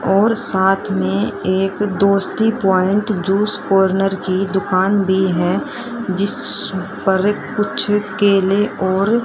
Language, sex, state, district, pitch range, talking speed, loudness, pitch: Hindi, female, Haryana, Rohtak, 190-205 Hz, 110 wpm, -16 LUFS, 195 Hz